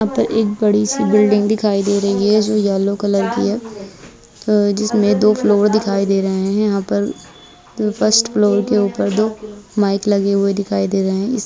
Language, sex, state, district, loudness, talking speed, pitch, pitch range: Hindi, female, Bihar, Purnia, -16 LUFS, 205 wpm, 205 Hz, 200-215 Hz